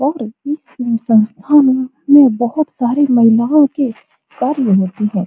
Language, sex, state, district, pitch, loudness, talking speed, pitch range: Hindi, female, Bihar, Supaul, 255 Hz, -13 LUFS, 150 wpm, 225-285 Hz